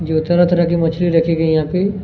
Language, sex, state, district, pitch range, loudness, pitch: Hindi, male, Chhattisgarh, Kabirdham, 160-175 Hz, -15 LUFS, 170 Hz